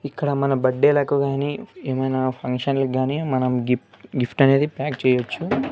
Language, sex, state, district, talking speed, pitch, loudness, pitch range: Telugu, male, Andhra Pradesh, Sri Satya Sai, 135 wpm, 135 Hz, -21 LUFS, 130-145 Hz